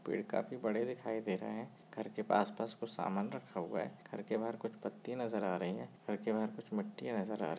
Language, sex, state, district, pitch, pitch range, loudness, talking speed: Hindi, male, Goa, North and South Goa, 110 Hz, 105-115 Hz, -40 LUFS, 270 wpm